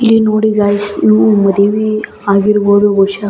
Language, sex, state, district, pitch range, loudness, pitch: Kannada, male, Karnataka, Belgaum, 200-215 Hz, -11 LUFS, 205 Hz